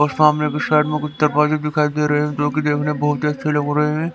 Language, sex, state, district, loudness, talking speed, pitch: Hindi, male, Haryana, Rohtak, -18 LUFS, 290 wpm, 150 Hz